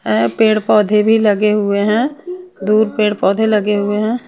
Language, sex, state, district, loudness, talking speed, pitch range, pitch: Hindi, female, Punjab, Kapurthala, -14 LUFS, 155 wpm, 210-225 Hz, 215 Hz